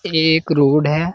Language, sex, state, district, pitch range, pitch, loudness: Hindi, male, Jharkhand, Jamtara, 150-160 Hz, 160 Hz, -15 LUFS